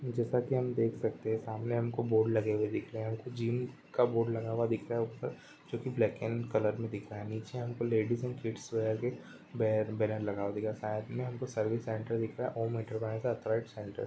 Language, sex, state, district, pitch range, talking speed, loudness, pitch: Hindi, male, Chhattisgarh, Rajnandgaon, 110-120 Hz, 250 wpm, -34 LUFS, 115 Hz